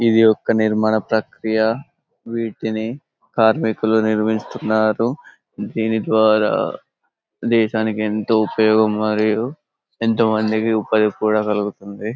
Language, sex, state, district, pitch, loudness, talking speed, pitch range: Telugu, male, Telangana, Karimnagar, 110 Hz, -19 LUFS, 90 wpm, 110-115 Hz